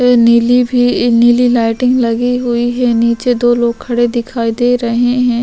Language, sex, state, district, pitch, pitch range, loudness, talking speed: Hindi, female, Chhattisgarh, Korba, 240 Hz, 235-245 Hz, -12 LUFS, 165 wpm